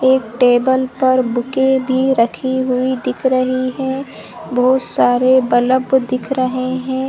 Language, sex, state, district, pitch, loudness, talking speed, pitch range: Hindi, female, Chhattisgarh, Bilaspur, 255 Hz, -15 LUFS, 135 wpm, 250-260 Hz